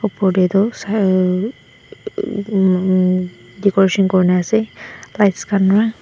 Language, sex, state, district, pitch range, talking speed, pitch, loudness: Nagamese, female, Nagaland, Dimapur, 185-215 Hz, 110 wpm, 195 Hz, -16 LUFS